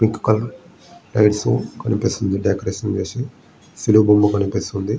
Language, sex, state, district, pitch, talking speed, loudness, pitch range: Telugu, male, Andhra Pradesh, Visakhapatnam, 105 Hz, 95 wpm, -19 LUFS, 100-110 Hz